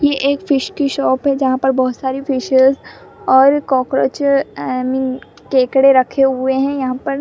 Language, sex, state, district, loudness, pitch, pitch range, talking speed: Hindi, female, Bihar, Purnia, -15 LUFS, 270 Hz, 260-280 Hz, 175 wpm